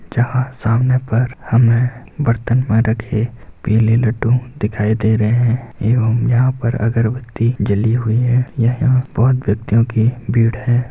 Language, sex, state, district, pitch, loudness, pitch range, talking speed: Hindi, male, Bihar, Saharsa, 120 Hz, -16 LUFS, 110-125 Hz, 145 wpm